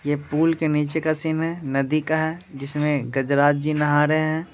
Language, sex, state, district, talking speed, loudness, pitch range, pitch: Hindi, male, Bihar, Muzaffarpur, 200 wpm, -22 LUFS, 145-160 Hz, 150 Hz